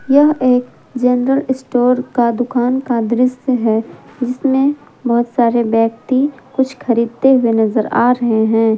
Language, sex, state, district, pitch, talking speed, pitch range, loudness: Hindi, female, Jharkhand, Palamu, 250 Hz, 135 wpm, 235-260 Hz, -15 LUFS